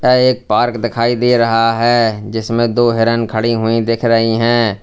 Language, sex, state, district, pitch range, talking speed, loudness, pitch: Hindi, male, Uttar Pradesh, Lalitpur, 115-120 Hz, 175 wpm, -14 LUFS, 115 Hz